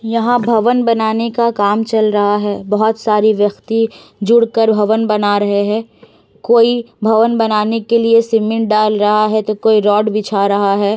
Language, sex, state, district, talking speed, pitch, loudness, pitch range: Hindi, female, Bihar, Kishanganj, 175 wpm, 220 Hz, -14 LUFS, 210-230 Hz